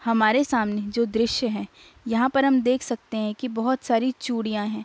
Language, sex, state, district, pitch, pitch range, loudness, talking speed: Hindi, female, Uttar Pradesh, Budaun, 235 Hz, 220-255 Hz, -24 LUFS, 200 wpm